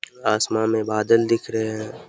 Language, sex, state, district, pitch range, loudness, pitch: Hindi, male, Bihar, Saharsa, 110-115 Hz, -21 LUFS, 110 Hz